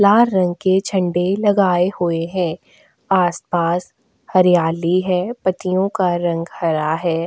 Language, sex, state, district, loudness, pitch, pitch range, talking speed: Hindi, female, Goa, North and South Goa, -18 LUFS, 180 Hz, 170-190 Hz, 125 wpm